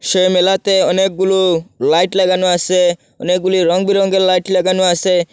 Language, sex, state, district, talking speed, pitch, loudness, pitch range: Bengali, male, Assam, Hailakandi, 125 wpm, 185 Hz, -14 LUFS, 180-190 Hz